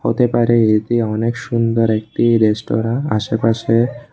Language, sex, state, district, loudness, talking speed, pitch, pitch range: Bengali, male, Tripura, West Tripura, -16 LUFS, 115 wpm, 115 Hz, 110-120 Hz